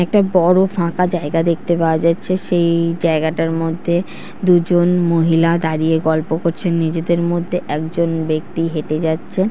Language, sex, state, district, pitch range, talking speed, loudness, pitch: Bengali, female, West Bengal, North 24 Parganas, 160-175 Hz, 140 wpm, -17 LUFS, 170 Hz